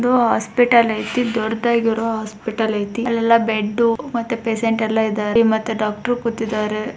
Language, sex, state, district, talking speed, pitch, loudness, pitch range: Kannada, female, Karnataka, Bijapur, 120 wpm, 225 Hz, -19 LUFS, 220-235 Hz